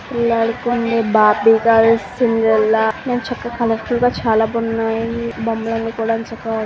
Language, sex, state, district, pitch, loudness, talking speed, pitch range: Telugu, female, Andhra Pradesh, Visakhapatnam, 225 Hz, -17 LUFS, 135 wpm, 225-235 Hz